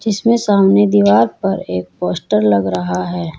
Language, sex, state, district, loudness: Hindi, female, Uttar Pradesh, Saharanpur, -15 LUFS